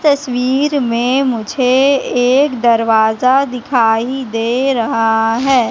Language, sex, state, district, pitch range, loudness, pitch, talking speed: Hindi, female, Madhya Pradesh, Katni, 230-270 Hz, -14 LUFS, 250 Hz, 95 wpm